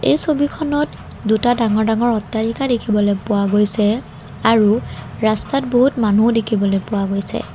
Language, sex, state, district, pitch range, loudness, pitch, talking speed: Assamese, female, Assam, Kamrup Metropolitan, 210-245 Hz, -17 LUFS, 220 Hz, 125 wpm